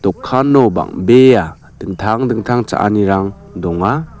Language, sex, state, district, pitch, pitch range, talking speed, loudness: Garo, male, Meghalaya, South Garo Hills, 110 Hz, 95-130 Hz, 70 wpm, -13 LUFS